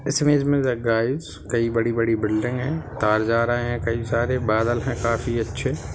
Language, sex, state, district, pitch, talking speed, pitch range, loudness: Hindi, male, Bihar, Gopalganj, 115 Hz, 180 wpm, 115-125 Hz, -22 LUFS